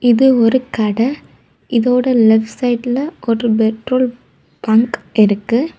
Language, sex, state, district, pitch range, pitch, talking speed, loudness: Tamil, female, Tamil Nadu, Kanyakumari, 225-255 Hz, 240 Hz, 105 wpm, -15 LUFS